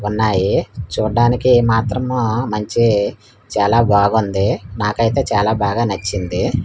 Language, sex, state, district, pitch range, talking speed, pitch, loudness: Telugu, male, Andhra Pradesh, Manyam, 100-115 Hz, 90 wpm, 110 Hz, -16 LUFS